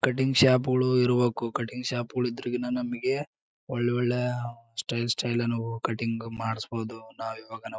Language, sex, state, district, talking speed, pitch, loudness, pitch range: Kannada, male, Karnataka, Bellary, 125 wpm, 120 Hz, -28 LUFS, 115-125 Hz